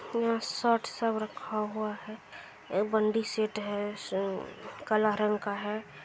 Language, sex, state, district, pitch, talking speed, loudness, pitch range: Hindi, female, Bihar, Saharsa, 215 Hz, 130 wpm, -31 LUFS, 210-225 Hz